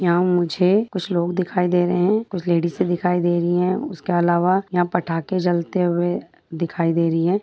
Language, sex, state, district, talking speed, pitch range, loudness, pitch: Hindi, female, Bihar, Begusarai, 200 wpm, 170-185 Hz, -20 LUFS, 175 Hz